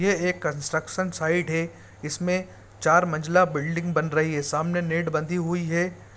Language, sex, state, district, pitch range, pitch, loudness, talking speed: Hindi, male, Bihar, Saran, 155-175 Hz, 165 Hz, -25 LUFS, 165 wpm